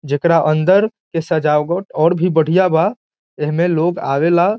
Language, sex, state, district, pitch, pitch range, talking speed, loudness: Bhojpuri, male, Bihar, Saran, 165 Hz, 155-180 Hz, 145 wpm, -16 LUFS